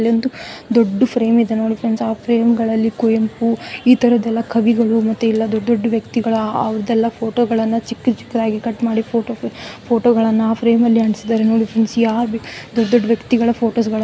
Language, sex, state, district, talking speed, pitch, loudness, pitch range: Kannada, female, Karnataka, Gulbarga, 165 wpm, 230 Hz, -17 LUFS, 225-235 Hz